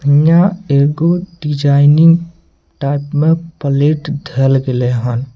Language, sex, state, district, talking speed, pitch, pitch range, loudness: Maithili, male, Bihar, Samastipur, 100 wpm, 145 Hz, 140-165 Hz, -13 LUFS